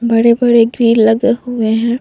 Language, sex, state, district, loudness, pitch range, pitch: Hindi, female, Bihar, Vaishali, -12 LUFS, 225-240 Hz, 235 Hz